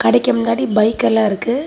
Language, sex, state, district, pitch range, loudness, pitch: Tamil, female, Tamil Nadu, Kanyakumari, 220-245 Hz, -15 LUFS, 230 Hz